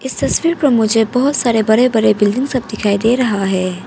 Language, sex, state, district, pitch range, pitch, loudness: Hindi, female, Arunachal Pradesh, Papum Pare, 215-255 Hz, 225 Hz, -14 LUFS